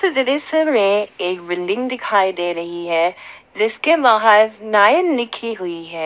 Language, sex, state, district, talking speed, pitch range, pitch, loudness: Hindi, female, Jharkhand, Ranchi, 120 wpm, 175-255 Hz, 210 Hz, -17 LUFS